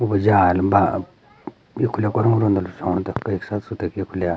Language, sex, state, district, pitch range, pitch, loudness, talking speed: Garhwali, male, Uttarakhand, Uttarkashi, 90-105 Hz, 100 Hz, -20 LUFS, 150 wpm